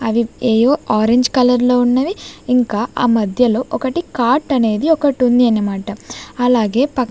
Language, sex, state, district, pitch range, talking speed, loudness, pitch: Telugu, female, Andhra Pradesh, Sri Satya Sai, 225-260 Hz, 150 wpm, -15 LUFS, 245 Hz